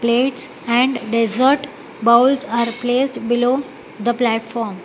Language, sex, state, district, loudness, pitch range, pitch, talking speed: English, female, Telangana, Hyderabad, -18 LUFS, 235-260 Hz, 240 Hz, 110 wpm